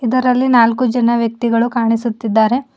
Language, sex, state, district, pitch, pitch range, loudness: Kannada, female, Karnataka, Bidar, 235 Hz, 230-250 Hz, -14 LUFS